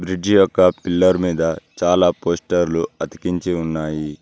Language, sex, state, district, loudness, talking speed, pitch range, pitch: Telugu, male, Telangana, Mahabubabad, -18 LUFS, 115 wpm, 80-90 Hz, 90 Hz